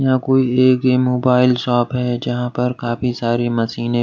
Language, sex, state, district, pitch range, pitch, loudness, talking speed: Hindi, male, Maharashtra, Washim, 120-125 Hz, 125 Hz, -17 LUFS, 180 wpm